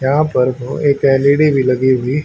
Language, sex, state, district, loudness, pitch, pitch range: Hindi, male, Haryana, Charkhi Dadri, -14 LUFS, 135 Hz, 130-145 Hz